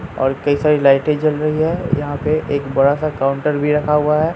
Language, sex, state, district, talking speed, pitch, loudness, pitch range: Hindi, male, Bihar, Katihar, 235 wpm, 150 Hz, -17 LUFS, 140-155 Hz